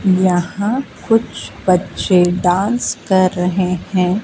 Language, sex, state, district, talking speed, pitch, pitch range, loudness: Hindi, female, Madhya Pradesh, Dhar, 100 wpm, 185 Hz, 180-200 Hz, -16 LUFS